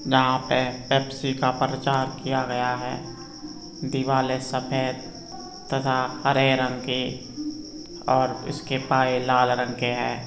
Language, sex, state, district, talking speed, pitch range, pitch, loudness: Hindi, male, Uttar Pradesh, Hamirpur, 125 wpm, 130-135 Hz, 130 Hz, -24 LUFS